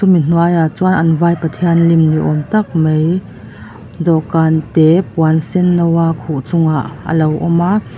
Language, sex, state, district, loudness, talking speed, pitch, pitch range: Mizo, female, Mizoram, Aizawl, -13 LUFS, 165 wpm, 165 Hz, 155-170 Hz